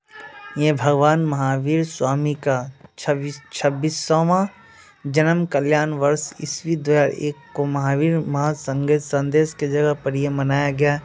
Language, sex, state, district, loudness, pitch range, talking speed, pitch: Hindi, male, Bihar, Muzaffarpur, -20 LUFS, 140-155 Hz, 135 wpm, 150 Hz